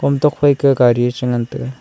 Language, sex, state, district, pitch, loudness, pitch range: Wancho, male, Arunachal Pradesh, Longding, 130 Hz, -15 LUFS, 125-140 Hz